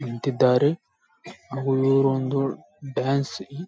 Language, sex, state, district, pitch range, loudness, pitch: Kannada, male, Karnataka, Bijapur, 130-140 Hz, -23 LUFS, 135 Hz